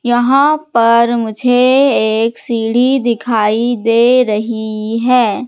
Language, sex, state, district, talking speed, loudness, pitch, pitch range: Hindi, female, Madhya Pradesh, Katni, 100 wpm, -12 LUFS, 235 Hz, 225-250 Hz